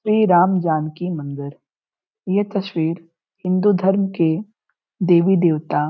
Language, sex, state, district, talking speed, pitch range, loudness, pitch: Hindi, male, Uttar Pradesh, Gorakhpur, 120 wpm, 160-195 Hz, -19 LUFS, 180 Hz